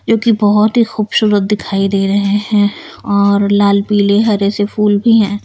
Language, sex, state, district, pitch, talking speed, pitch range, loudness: Hindi, female, Bihar, Patna, 205 Hz, 185 wpm, 200-210 Hz, -12 LUFS